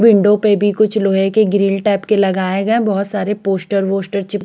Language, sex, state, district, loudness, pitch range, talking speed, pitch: Hindi, female, Chandigarh, Chandigarh, -15 LUFS, 195-210 Hz, 230 wpm, 200 Hz